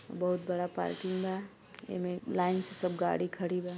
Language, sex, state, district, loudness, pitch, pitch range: Bhojpuri, female, Uttar Pradesh, Gorakhpur, -34 LUFS, 180 Hz, 180-185 Hz